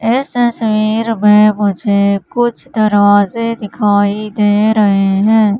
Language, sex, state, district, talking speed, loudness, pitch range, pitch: Hindi, female, Madhya Pradesh, Katni, 105 wpm, -12 LUFS, 205-225 Hz, 210 Hz